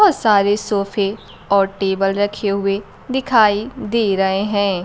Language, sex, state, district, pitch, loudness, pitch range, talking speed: Hindi, female, Bihar, Kaimur, 205 Hz, -18 LUFS, 195-220 Hz, 135 wpm